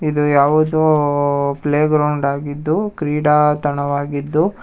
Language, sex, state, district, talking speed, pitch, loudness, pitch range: Kannada, male, Karnataka, Bangalore, 105 wpm, 150 Hz, -17 LUFS, 145-155 Hz